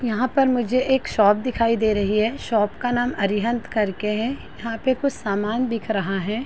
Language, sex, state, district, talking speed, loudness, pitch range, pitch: Hindi, female, Chhattisgarh, Bilaspur, 205 wpm, -22 LUFS, 210-250 Hz, 230 Hz